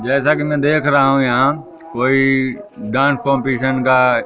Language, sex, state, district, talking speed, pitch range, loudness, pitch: Hindi, male, Madhya Pradesh, Katni, 155 wpm, 130-145 Hz, -15 LUFS, 135 Hz